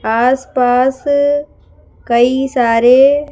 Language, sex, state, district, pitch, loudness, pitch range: Hindi, female, Madhya Pradesh, Bhopal, 260 Hz, -12 LUFS, 245-285 Hz